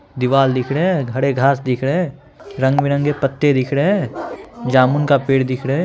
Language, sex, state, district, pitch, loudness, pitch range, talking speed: Hindi, male, Bihar, Purnia, 135 Hz, -17 LUFS, 130-145 Hz, 235 wpm